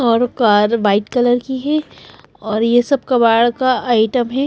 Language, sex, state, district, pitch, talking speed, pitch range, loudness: Hindi, female, Chandigarh, Chandigarh, 240 Hz, 175 wpm, 225-255 Hz, -15 LUFS